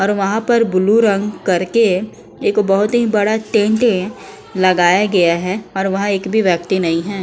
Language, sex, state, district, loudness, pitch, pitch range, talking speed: Hindi, female, Uttar Pradesh, Muzaffarnagar, -15 LUFS, 200 Hz, 185-215 Hz, 180 wpm